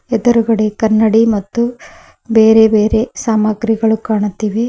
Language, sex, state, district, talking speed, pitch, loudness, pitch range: Kannada, female, Karnataka, Koppal, 90 wpm, 220 Hz, -13 LUFS, 215-230 Hz